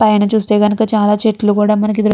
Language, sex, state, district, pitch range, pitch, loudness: Telugu, female, Andhra Pradesh, Chittoor, 210-215 Hz, 210 Hz, -13 LUFS